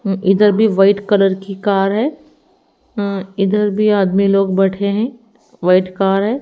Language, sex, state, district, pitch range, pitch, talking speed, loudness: Hindi, female, Haryana, Rohtak, 195-220 Hz, 200 Hz, 170 wpm, -15 LUFS